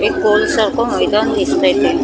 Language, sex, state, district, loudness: Marathi, female, Maharashtra, Mumbai Suburban, -14 LUFS